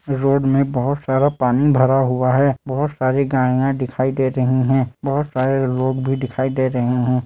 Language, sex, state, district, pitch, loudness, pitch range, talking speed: Hindi, male, Bihar, Madhepura, 130 Hz, -18 LUFS, 130-135 Hz, 190 wpm